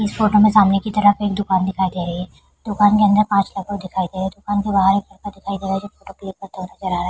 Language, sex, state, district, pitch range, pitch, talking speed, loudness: Hindi, female, Bihar, Kishanganj, 190-205 Hz, 195 Hz, 315 wpm, -18 LUFS